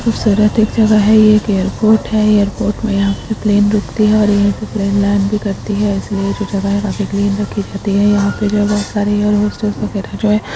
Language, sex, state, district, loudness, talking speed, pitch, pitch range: Hindi, female, Maharashtra, Aurangabad, -14 LUFS, 225 wpm, 205 Hz, 200-210 Hz